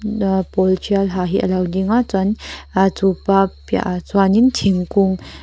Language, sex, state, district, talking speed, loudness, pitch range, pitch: Mizo, female, Mizoram, Aizawl, 155 wpm, -17 LUFS, 185-200 Hz, 195 Hz